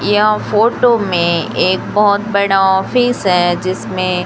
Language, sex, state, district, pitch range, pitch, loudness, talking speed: Hindi, female, Chhattisgarh, Raipur, 185-210 Hz, 195 Hz, -14 LUFS, 125 wpm